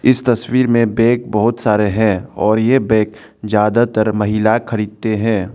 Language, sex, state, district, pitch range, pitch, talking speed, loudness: Hindi, male, Arunachal Pradesh, Lower Dibang Valley, 105-120 Hz, 110 Hz, 150 wpm, -15 LUFS